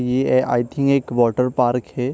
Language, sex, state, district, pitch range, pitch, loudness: Hindi, male, Maharashtra, Chandrapur, 120-130 Hz, 125 Hz, -19 LUFS